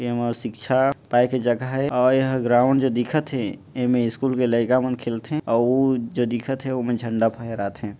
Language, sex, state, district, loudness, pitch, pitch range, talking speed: Chhattisgarhi, male, Chhattisgarh, Jashpur, -22 LUFS, 125 Hz, 115-130 Hz, 205 wpm